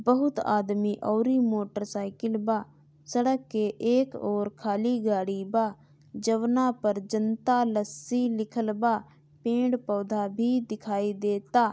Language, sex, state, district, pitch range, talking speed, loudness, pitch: Bhojpuri, female, Bihar, Gopalganj, 205-240 Hz, 125 wpm, -28 LUFS, 215 Hz